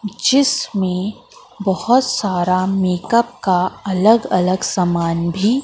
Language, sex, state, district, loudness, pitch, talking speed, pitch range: Hindi, female, Madhya Pradesh, Katni, -17 LUFS, 190 Hz, 95 wpm, 180-230 Hz